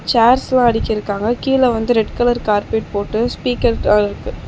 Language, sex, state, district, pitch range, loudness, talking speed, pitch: Tamil, female, Tamil Nadu, Chennai, 210-245 Hz, -16 LUFS, 150 wpm, 230 Hz